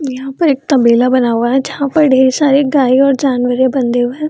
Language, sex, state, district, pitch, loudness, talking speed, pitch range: Hindi, female, Bihar, Gaya, 265 Hz, -12 LUFS, 235 wpm, 250-280 Hz